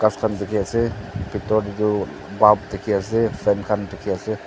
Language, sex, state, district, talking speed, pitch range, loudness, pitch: Nagamese, male, Nagaland, Dimapur, 135 wpm, 100-110 Hz, -21 LUFS, 105 Hz